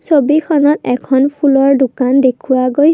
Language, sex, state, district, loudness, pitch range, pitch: Assamese, female, Assam, Kamrup Metropolitan, -12 LUFS, 260-295 Hz, 275 Hz